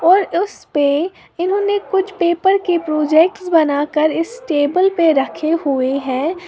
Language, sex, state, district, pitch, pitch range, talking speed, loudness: Hindi, female, Uttar Pradesh, Lalitpur, 335 Hz, 300-375 Hz, 150 wpm, -16 LUFS